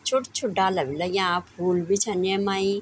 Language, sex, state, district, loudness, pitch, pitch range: Garhwali, female, Uttarakhand, Tehri Garhwal, -24 LUFS, 190 Hz, 180-200 Hz